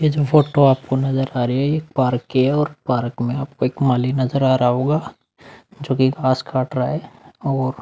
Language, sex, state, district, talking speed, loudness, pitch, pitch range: Hindi, male, Uttar Pradesh, Muzaffarnagar, 220 wpm, -19 LUFS, 130 Hz, 130-145 Hz